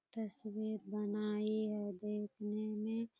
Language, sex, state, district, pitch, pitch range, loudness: Hindi, female, Bihar, Purnia, 210 Hz, 210-215 Hz, -41 LUFS